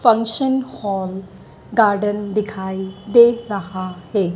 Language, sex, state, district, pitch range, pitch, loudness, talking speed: Hindi, female, Madhya Pradesh, Dhar, 190-225 Hz, 205 Hz, -19 LUFS, 95 wpm